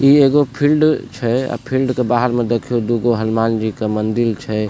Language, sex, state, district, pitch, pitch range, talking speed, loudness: Maithili, male, Bihar, Supaul, 120 Hz, 115-130 Hz, 215 wpm, -17 LUFS